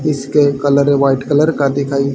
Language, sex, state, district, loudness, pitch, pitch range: Hindi, male, Haryana, Rohtak, -14 LUFS, 140 Hz, 140-145 Hz